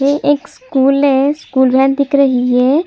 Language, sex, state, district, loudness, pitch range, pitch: Hindi, female, Chhattisgarh, Kabirdham, -13 LUFS, 265-285 Hz, 275 Hz